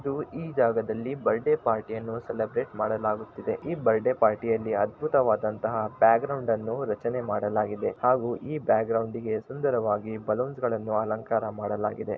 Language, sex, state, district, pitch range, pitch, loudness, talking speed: Kannada, male, Karnataka, Shimoga, 110-120 Hz, 110 Hz, -27 LUFS, 125 wpm